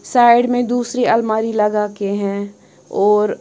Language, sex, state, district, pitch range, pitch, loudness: Hindi, female, Punjab, Kapurthala, 205-245 Hz, 220 Hz, -16 LUFS